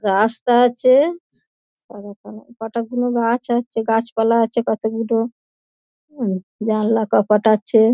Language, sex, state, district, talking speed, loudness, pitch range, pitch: Bengali, female, West Bengal, Dakshin Dinajpur, 105 wpm, -18 LUFS, 220-240 Hz, 225 Hz